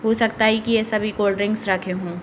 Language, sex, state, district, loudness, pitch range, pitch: Hindi, female, Uttar Pradesh, Deoria, -20 LUFS, 190-220 Hz, 215 Hz